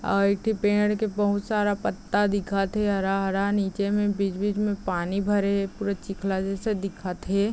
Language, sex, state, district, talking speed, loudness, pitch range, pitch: Chhattisgarhi, female, Chhattisgarh, Raigarh, 190 wpm, -26 LUFS, 195-205 Hz, 200 Hz